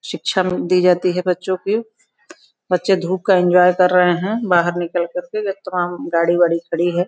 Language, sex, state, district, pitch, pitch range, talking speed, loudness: Hindi, female, Uttar Pradesh, Gorakhpur, 180 Hz, 175-185 Hz, 180 wpm, -17 LUFS